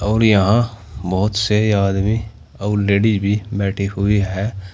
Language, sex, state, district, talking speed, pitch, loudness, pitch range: Hindi, male, Uttar Pradesh, Saharanpur, 150 wpm, 100 Hz, -18 LUFS, 100-105 Hz